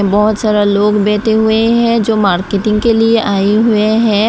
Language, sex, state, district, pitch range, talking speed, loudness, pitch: Hindi, female, Tripura, West Tripura, 205-225 Hz, 180 wpm, -12 LUFS, 215 Hz